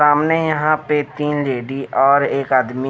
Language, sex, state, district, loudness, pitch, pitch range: Hindi, male, Bihar, Patna, -17 LUFS, 145 Hz, 135-150 Hz